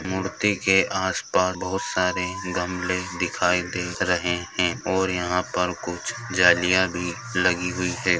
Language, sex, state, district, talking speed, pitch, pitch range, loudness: Hindi, male, Bihar, Jamui, 140 wpm, 90 Hz, 90-95 Hz, -23 LUFS